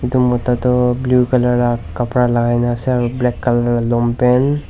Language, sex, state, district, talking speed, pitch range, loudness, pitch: Nagamese, male, Nagaland, Dimapur, 205 wpm, 120-125 Hz, -16 LUFS, 125 Hz